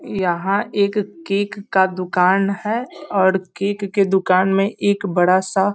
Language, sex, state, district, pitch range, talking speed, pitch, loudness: Hindi, male, Bihar, East Champaran, 190-200 Hz, 155 wpm, 195 Hz, -19 LUFS